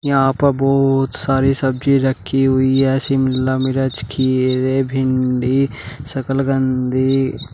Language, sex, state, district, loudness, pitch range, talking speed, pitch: Hindi, male, Uttar Pradesh, Shamli, -17 LUFS, 130-135 Hz, 110 wpm, 135 Hz